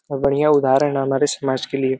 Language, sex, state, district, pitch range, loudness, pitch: Hindi, male, Uttar Pradesh, Deoria, 135-145 Hz, -18 LUFS, 140 Hz